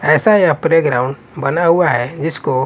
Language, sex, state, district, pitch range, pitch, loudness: Hindi, male, Punjab, Kapurthala, 135-170 Hz, 155 Hz, -14 LUFS